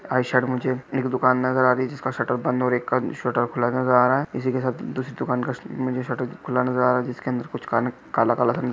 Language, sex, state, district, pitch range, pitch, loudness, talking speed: Hindi, male, Maharashtra, Chandrapur, 125-130 Hz, 125 Hz, -23 LUFS, 255 wpm